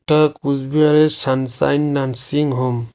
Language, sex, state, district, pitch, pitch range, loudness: Bengali, male, West Bengal, Cooch Behar, 145 Hz, 130-150 Hz, -15 LUFS